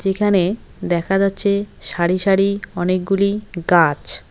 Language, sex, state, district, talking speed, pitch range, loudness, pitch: Bengali, female, West Bengal, Cooch Behar, 95 wpm, 175-200 Hz, -18 LUFS, 195 Hz